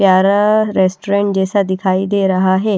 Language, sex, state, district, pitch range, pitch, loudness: Hindi, female, Haryana, Rohtak, 190-200 Hz, 195 Hz, -14 LUFS